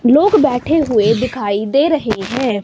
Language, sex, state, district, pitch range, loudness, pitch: Hindi, female, Himachal Pradesh, Shimla, 215-280 Hz, -15 LUFS, 245 Hz